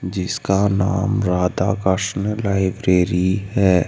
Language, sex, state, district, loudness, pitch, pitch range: Hindi, male, Rajasthan, Jaipur, -19 LUFS, 95 Hz, 90-100 Hz